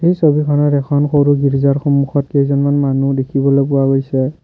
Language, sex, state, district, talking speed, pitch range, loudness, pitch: Assamese, male, Assam, Kamrup Metropolitan, 150 wpm, 135-145 Hz, -14 LUFS, 140 Hz